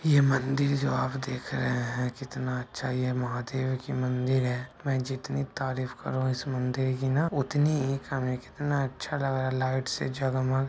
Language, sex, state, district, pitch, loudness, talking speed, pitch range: Hindi, male, Bihar, Gopalganj, 130 Hz, -29 LUFS, 190 wpm, 125-135 Hz